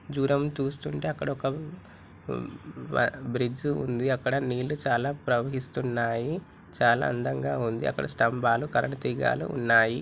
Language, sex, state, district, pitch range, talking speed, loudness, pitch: Telugu, male, Telangana, Nalgonda, 120-140 Hz, 110 wpm, -28 LUFS, 130 Hz